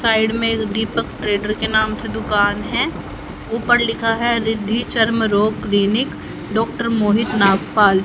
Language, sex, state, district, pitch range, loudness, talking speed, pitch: Hindi, female, Haryana, Rohtak, 210-230 Hz, -18 LUFS, 140 wpm, 220 Hz